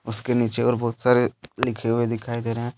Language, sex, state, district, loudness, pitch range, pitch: Hindi, male, Jharkhand, Deoghar, -23 LUFS, 115-125 Hz, 120 Hz